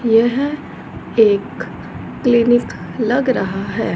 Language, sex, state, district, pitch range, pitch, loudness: Hindi, female, Punjab, Fazilka, 210-250 Hz, 235 Hz, -16 LUFS